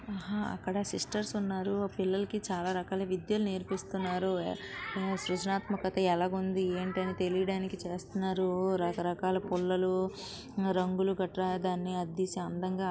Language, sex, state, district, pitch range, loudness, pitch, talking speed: Telugu, female, Andhra Pradesh, Srikakulam, 185-195 Hz, -33 LUFS, 185 Hz, 105 wpm